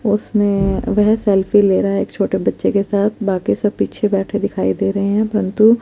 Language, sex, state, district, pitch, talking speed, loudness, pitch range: Hindi, female, Chandigarh, Chandigarh, 205 Hz, 215 wpm, -16 LUFS, 195-210 Hz